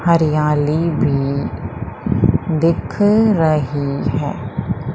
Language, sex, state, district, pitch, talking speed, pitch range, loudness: Hindi, female, Madhya Pradesh, Umaria, 155 Hz, 60 wpm, 145-170 Hz, -17 LUFS